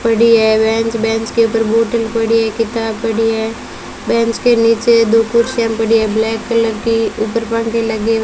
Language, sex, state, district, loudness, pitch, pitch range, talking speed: Hindi, female, Rajasthan, Bikaner, -14 LUFS, 225 Hz, 225-230 Hz, 190 wpm